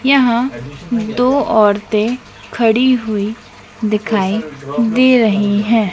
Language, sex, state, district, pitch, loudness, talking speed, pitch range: Hindi, female, Madhya Pradesh, Dhar, 225 Hz, -15 LUFS, 90 wpm, 205-245 Hz